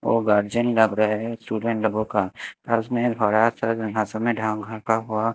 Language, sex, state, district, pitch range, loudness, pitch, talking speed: Hindi, male, Haryana, Jhajjar, 110-115 Hz, -23 LUFS, 110 Hz, 200 wpm